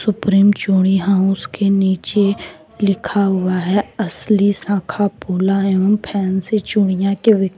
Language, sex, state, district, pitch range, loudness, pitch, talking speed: Hindi, female, Jharkhand, Deoghar, 190-205 Hz, -16 LUFS, 195 Hz, 110 wpm